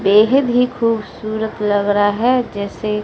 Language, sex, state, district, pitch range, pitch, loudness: Hindi, female, Bihar, Katihar, 205-240 Hz, 215 Hz, -17 LUFS